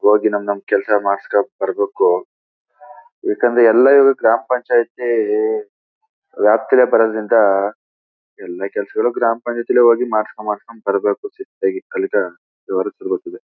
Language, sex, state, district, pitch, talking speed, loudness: Kannada, male, Karnataka, Chamarajanagar, 120 Hz, 90 wpm, -17 LUFS